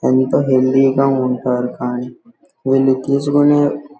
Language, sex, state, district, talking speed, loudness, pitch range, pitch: Telugu, male, Andhra Pradesh, Guntur, 120 wpm, -15 LUFS, 130-145 Hz, 135 Hz